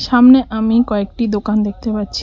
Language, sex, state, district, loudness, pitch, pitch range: Bengali, female, West Bengal, Cooch Behar, -14 LUFS, 220 Hz, 210-235 Hz